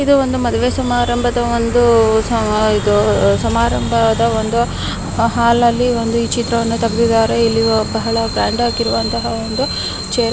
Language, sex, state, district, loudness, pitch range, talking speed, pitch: Kannada, female, Karnataka, Bellary, -15 LUFS, 220-235 Hz, 115 wpm, 230 Hz